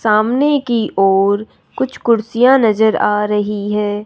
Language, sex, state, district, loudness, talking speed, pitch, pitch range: Hindi, male, Rajasthan, Jaipur, -14 LUFS, 135 wpm, 215 Hz, 210-235 Hz